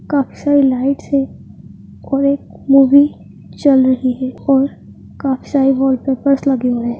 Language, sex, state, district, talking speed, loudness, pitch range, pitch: Hindi, female, Uttarakhand, Tehri Garhwal, 145 wpm, -15 LUFS, 260-280 Hz, 270 Hz